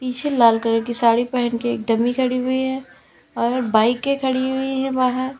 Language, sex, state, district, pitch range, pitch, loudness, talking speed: Hindi, female, Uttar Pradesh, Lalitpur, 235-260 Hz, 255 Hz, -20 LUFS, 200 wpm